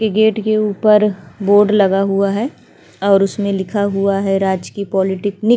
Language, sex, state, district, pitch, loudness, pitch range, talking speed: Hindi, female, Uttar Pradesh, Hamirpur, 200 Hz, -15 LUFS, 195-210 Hz, 170 wpm